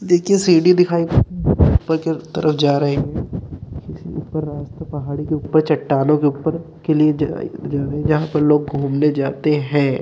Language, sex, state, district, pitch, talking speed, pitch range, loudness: Hindi, male, Uttar Pradesh, Etah, 150 Hz, 150 wpm, 145-160 Hz, -18 LUFS